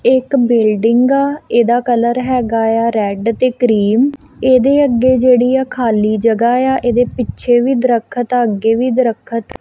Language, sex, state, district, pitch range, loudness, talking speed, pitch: Punjabi, female, Punjab, Kapurthala, 230-255 Hz, -13 LUFS, 155 wpm, 245 Hz